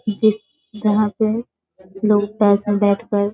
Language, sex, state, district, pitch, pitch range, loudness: Hindi, female, Bihar, Sitamarhi, 210 Hz, 205-215 Hz, -18 LUFS